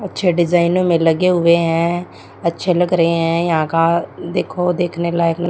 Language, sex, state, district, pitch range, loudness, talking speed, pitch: Hindi, female, Haryana, Charkhi Dadri, 165-180 Hz, -16 LUFS, 165 wpm, 170 Hz